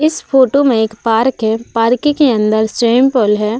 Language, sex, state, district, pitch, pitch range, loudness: Hindi, female, Uttar Pradesh, Budaun, 235 Hz, 220-265 Hz, -13 LUFS